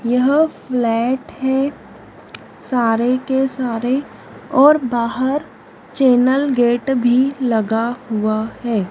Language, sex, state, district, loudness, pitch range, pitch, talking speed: Hindi, female, Madhya Pradesh, Dhar, -17 LUFS, 235-265 Hz, 250 Hz, 95 wpm